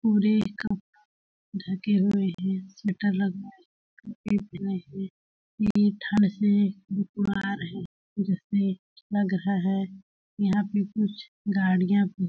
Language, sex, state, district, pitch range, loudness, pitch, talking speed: Hindi, female, Chhattisgarh, Balrampur, 190-205 Hz, -27 LUFS, 200 Hz, 105 wpm